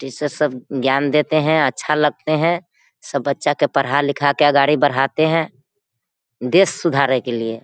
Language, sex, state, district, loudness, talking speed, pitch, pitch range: Hindi, female, Bihar, Sitamarhi, -18 LUFS, 175 wpm, 145 Hz, 135-155 Hz